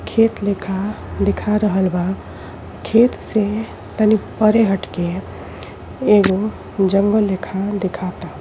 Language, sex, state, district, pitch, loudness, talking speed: Bhojpuri, female, Uttar Pradesh, Ghazipur, 195 Hz, -18 LUFS, 105 wpm